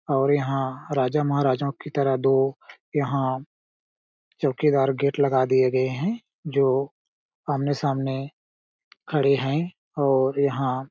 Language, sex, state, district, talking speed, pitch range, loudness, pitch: Hindi, male, Chhattisgarh, Balrampur, 115 wpm, 135-145 Hz, -24 LUFS, 140 Hz